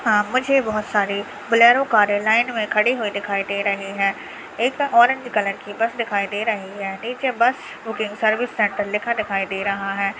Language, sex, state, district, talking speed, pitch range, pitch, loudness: Hindi, female, Bihar, Saharsa, 190 wpm, 200-235 Hz, 215 Hz, -20 LUFS